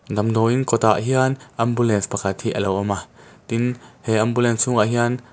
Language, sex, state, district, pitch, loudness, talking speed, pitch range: Mizo, male, Mizoram, Aizawl, 115 Hz, -20 LUFS, 180 wpm, 105-120 Hz